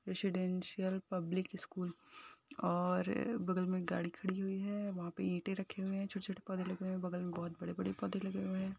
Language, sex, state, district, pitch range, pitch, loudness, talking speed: Hindi, female, Uttar Pradesh, Etah, 180-195 Hz, 190 Hz, -40 LUFS, 225 wpm